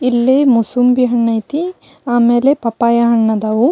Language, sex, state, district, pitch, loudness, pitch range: Kannada, female, Karnataka, Belgaum, 240 Hz, -13 LUFS, 230-255 Hz